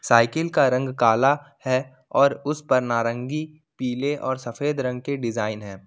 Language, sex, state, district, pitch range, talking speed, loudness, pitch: Hindi, male, Jharkhand, Ranchi, 120-145 Hz, 165 wpm, -23 LUFS, 130 Hz